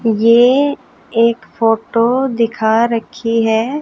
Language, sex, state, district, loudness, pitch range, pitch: Hindi, female, Haryana, Jhajjar, -14 LUFS, 225-245 Hz, 230 Hz